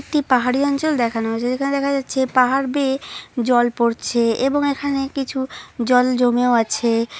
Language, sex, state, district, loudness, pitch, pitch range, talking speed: Bengali, female, West Bengal, Purulia, -19 LUFS, 255 Hz, 240-275 Hz, 150 wpm